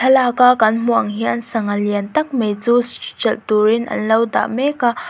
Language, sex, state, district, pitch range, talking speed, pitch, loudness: Mizo, female, Mizoram, Aizawl, 210-245 Hz, 200 wpm, 230 Hz, -17 LUFS